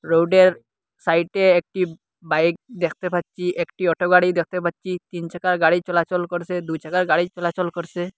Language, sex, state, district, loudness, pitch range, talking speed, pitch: Bengali, male, Assam, Hailakandi, -21 LUFS, 170-180 Hz, 155 wpm, 175 Hz